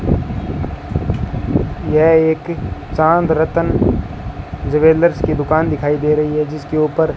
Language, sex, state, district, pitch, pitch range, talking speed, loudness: Hindi, male, Rajasthan, Bikaner, 155 Hz, 145-160 Hz, 100 wpm, -16 LUFS